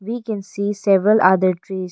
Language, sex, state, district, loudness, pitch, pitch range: English, female, Arunachal Pradesh, Longding, -18 LUFS, 200 Hz, 190-215 Hz